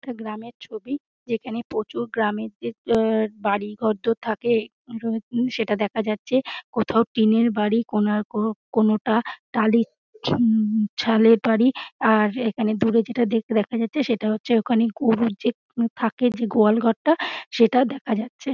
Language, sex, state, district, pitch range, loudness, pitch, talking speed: Bengali, female, West Bengal, Dakshin Dinajpur, 215-235 Hz, -22 LUFS, 225 Hz, 140 wpm